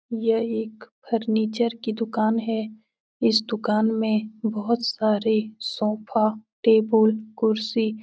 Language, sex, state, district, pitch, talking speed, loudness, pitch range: Hindi, female, Uttar Pradesh, Etah, 220 Hz, 110 wpm, -23 LUFS, 215-225 Hz